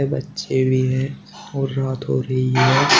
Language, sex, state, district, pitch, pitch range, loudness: Hindi, male, Uttar Pradesh, Shamli, 130 Hz, 130-135 Hz, -20 LUFS